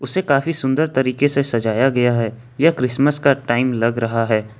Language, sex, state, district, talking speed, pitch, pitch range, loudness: Hindi, male, Jharkhand, Ranchi, 195 wpm, 130 Hz, 115-140 Hz, -17 LUFS